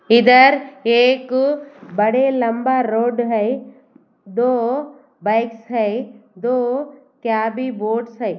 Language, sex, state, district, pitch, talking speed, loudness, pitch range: Hindi, female, Bihar, Katihar, 245 Hz, 85 wpm, -18 LUFS, 225-260 Hz